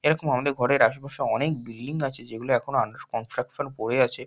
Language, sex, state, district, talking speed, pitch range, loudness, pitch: Bengali, male, West Bengal, North 24 Parganas, 185 wpm, 120-140 Hz, -26 LUFS, 125 Hz